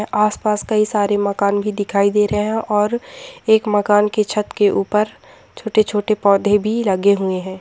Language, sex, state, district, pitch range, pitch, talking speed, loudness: Hindi, female, Bihar, Jamui, 205-215 Hz, 210 Hz, 175 wpm, -17 LUFS